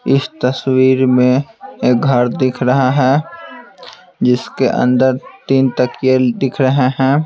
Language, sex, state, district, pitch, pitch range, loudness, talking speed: Hindi, male, Bihar, Patna, 130 Hz, 125-140 Hz, -14 LUFS, 125 wpm